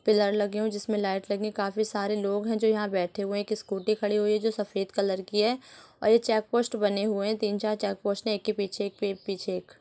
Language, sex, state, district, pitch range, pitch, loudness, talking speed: Hindi, female, Uttar Pradesh, Etah, 200-215 Hz, 210 Hz, -28 LUFS, 265 wpm